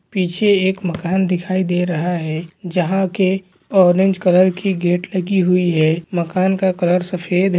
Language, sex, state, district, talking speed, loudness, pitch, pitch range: Hindi, male, Jharkhand, Jamtara, 160 wpm, -17 LUFS, 185 Hz, 175-190 Hz